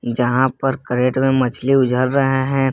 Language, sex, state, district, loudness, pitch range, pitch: Hindi, male, Jharkhand, Garhwa, -17 LUFS, 125-135 Hz, 130 Hz